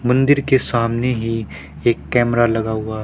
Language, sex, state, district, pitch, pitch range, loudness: Hindi, male, Haryana, Rohtak, 115 Hz, 110-125 Hz, -18 LUFS